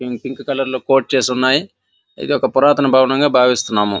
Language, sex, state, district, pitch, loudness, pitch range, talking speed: Telugu, male, Andhra Pradesh, Visakhapatnam, 130 Hz, -15 LUFS, 125-135 Hz, 150 wpm